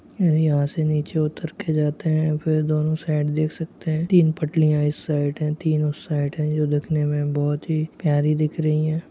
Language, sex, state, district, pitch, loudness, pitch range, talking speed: Hindi, male, Rajasthan, Churu, 155 Hz, -22 LUFS, 150-155 Hz, 205 wpm